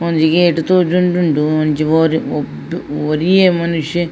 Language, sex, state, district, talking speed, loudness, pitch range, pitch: Tulu, female, Karnataka, Dakshina Kannada, 115 wpm, -14 LUFS, 155-175 Hz, 165 Hz